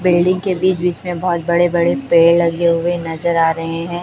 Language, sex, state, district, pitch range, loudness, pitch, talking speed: Hindi, male, Chhattisgarh, Raipur, 170-175 Hz, -16 LUFS, 170 Hz, 225 wpm